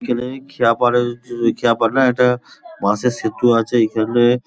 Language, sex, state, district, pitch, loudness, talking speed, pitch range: Bengali, male, West Bengal, Kolkata, 120 Hz, -17 LUFS, 135 wpm, 115-125 Hz